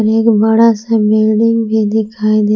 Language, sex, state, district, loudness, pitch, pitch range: Hindi, female, Jharkhand, Palamu, -12 LUFS, 220 Hz, 215-225 Hz